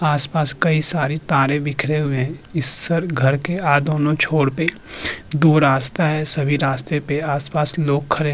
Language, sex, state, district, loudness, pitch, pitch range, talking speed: Hindi, male, Uttarakhand, Tehri Garhwal, -18 LUFS, 150 Hz, 140-155 Hz, 180 wpm